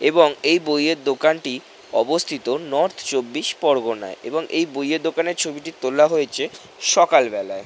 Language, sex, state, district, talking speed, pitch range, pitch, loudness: Bengali, male, West Bengal, North 24 Parganas, 125 wpm, 135-165 Hz, 155 Hz, -20 LUFS